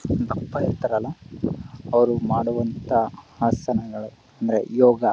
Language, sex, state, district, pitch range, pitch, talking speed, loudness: Kannada, male, Karnataka, Bellary, 110-120 Hz, 115 Hz, 80 wpm, -23 LUFS